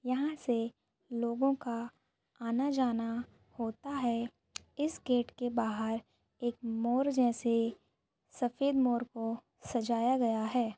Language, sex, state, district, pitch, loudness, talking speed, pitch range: Hindi, female, Bihar, Madhepura, 240 Hz, -34 LUFS, 110 wpm, 230-255 Hz